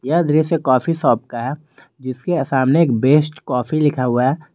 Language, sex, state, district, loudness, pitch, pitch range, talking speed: Hindi, male, Jharkhand, Garhwa, -17 LUFS, 145 Hz, 130-155 Hz, 185 wpm